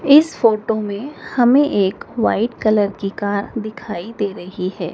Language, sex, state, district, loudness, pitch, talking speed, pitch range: Hindi, male, Madhya Pradesh, Dhar, -18 LUFS, 215 Hz, 160 wpm, 200-240 Hz